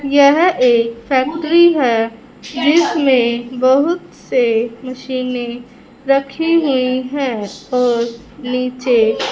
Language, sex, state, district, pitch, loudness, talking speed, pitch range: Hindi, female, Punjab, Fazilka, 255 Hz, -15 LUFS, 85 wpm, 240-275 Hz